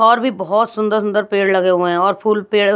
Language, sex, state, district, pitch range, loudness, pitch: Hindi, female, Bihar, Patna, 195-215 Hz, -16 LUFS, 210 Hz